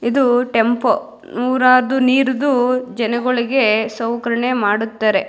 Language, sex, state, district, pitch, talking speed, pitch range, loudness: Kannada, female, Karnataka, Mysore, 245 Hz, 80 wpm, 230-255 Hz, -16 LUFS